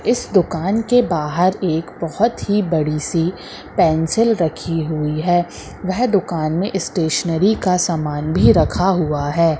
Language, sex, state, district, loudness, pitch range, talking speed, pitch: Hindi, female, Madhya Pradesh, Katni, -18 LUFS, 160-195 Hz, 145 wpm, 170 Hz